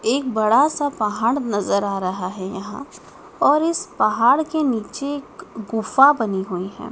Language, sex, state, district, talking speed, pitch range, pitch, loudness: Hindi, female, Madhya Pradesh, Dhar, 165 wpm, 205-285 Hz, 225 Hz, -20 LUFS